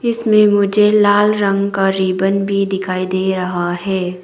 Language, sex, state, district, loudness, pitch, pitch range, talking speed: Hindi, female, Arunachal Pradesh, Papum Pare, -15 LUFS, 195 Hz, 185-205 Hz, 155 wpm